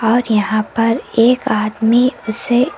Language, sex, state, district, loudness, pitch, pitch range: Hindi, female, Karnataka, Koppal, -15 LUFS, 230 Hz, 220-245 Hz